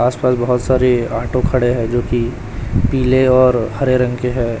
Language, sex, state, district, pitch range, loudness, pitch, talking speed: Hindi, male, Chhattisgarh, Raipur, 115-125 Hz, -16 LUFS, 125 Hz, 180 wpm